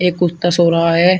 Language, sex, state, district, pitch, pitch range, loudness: Hindi, male, Uttar Pradesh, Shamli, 175 Hz, 170-180 Hz, -14 LUFS